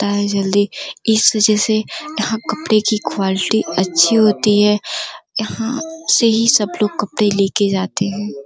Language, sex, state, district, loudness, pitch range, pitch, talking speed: Hindi, female, Uttar Pradesh, Gorakhpur, -16 LUFS, 205-225 Hz, 215 Hz, 155 wpm